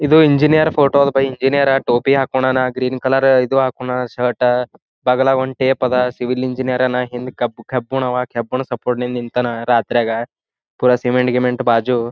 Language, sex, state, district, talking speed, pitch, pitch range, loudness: Kannada, male, Karnataka, Gulbarga, 155 wpm, 125 Hz, 125-135 Hz, -16 LUFS